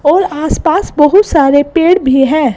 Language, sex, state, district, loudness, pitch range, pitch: Hindi, female, Gujarat, Gandhinagar, -10 LUFS, 280-335 Hz, 300 Hz